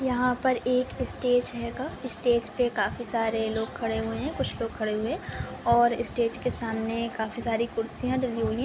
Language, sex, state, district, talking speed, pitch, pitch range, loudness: Hindi, female, Chhattisgarh, Bilaspur, 195 wpm, 235 Hz, 225-250 Hz, -28 LUFS